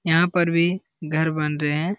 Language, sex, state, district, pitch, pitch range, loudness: Hindi, male, Jharkhand, Jamtara, 165 Hz, 155-175 Hz, -22 LUFS